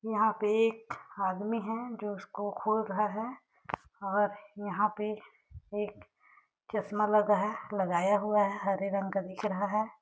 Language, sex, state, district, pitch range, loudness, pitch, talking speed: Hindi, female, Chhattisgarh, Sarguja, 200-215 Hz, -32 LUFS, 210 Hz, 160 wpm